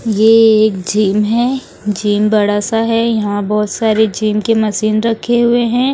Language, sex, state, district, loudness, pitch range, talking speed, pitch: Hindi, female, Haryana, Rohtak, -13 LUFS, 210-230 Hz, 170 wpm, 215 Hz